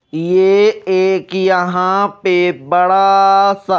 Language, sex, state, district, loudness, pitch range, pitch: Hindi, male, Odisha, Malkangiri, -13 LUFS, 180-195 Hz, 190 Hz